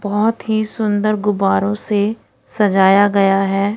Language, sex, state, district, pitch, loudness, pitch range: Hindi, female, Odisha, Khordha, 205 Hz, -16 LUFS, 195-215 Hz